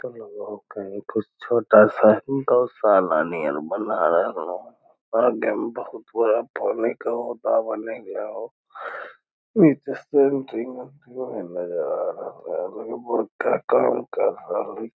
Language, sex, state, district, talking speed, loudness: Magahi, male, Bihar, Lakhisarai, 130 wpm, -22 LUFS